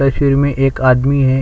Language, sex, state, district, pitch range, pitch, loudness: Hindi, male, Chhattisgarh, Sukma, 130-140 Hz, 135 Hz, -13 LUFS